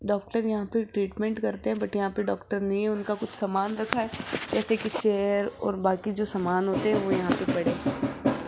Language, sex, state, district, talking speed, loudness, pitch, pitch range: Hindi, female, Rajasthan, Jaipur, 220 wpm, -27 LUFS, 205 Hz, 195-220 Hz